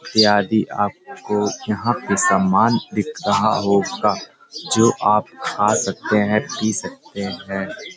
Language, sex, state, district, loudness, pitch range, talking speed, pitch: Hindi, male, Uttar Pradesh, Hamirpur, -19 LUFS, 100-110 Hz, 120 wpm, 105 Hz